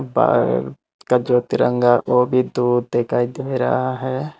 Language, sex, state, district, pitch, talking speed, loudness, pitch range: Hindi, male, Tripura, Unakoti, 125 Hz, 165 wpm, -19 LUFS, 120-130 Hz